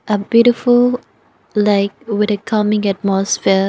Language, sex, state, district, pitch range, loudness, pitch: English, female, Nagaland, Dimapur, 200-235 Hz, -15 LUFS, 210 Hz